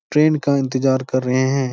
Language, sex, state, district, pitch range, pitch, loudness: Hindi, male, Bihar, Supaul, 130-140 Hz, 135 Hz, -18 LUFS